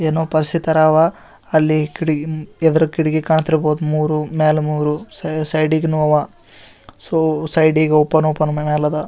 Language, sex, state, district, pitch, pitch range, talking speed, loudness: Kannada, male, Karnataka, Gulbarga, 155 Hz, 150-160 Hz, 120 wpm, -17 LUFS